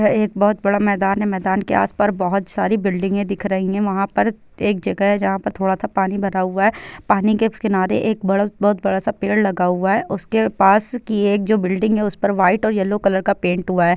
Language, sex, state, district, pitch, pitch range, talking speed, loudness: Hindi, female, Chhattisgarh, Bilaspur, 200 Hz, 195-210 Hz, 260 wpm, -18 LUFS